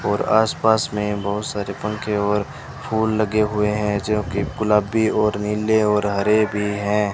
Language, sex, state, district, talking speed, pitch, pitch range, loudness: Hindi, male, Rajasthan, Bikaner, 170 wpm, 105 Hz, 105-110 Hz, -20 LUFS